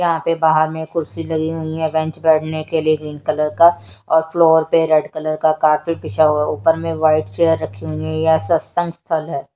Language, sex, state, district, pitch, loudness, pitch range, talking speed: Hindi, female, Haryana, Charkhi Dadri, 160 Hz, -17 LUFS, 155-165 Hz, 205 wpm